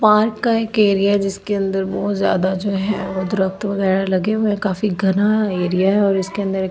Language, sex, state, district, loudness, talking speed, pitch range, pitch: Hindi, female, Delhi, New Delhi, -18 LUFS, 250 wpm, 190-210 Hz, 195 Hz